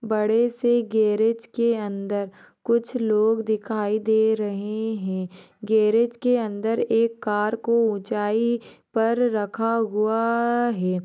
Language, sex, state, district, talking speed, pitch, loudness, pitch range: Hindi, female, Bihar, Jahanabad, 120 wpm, 220 Hz, -23 LUFS, 210-230 Hz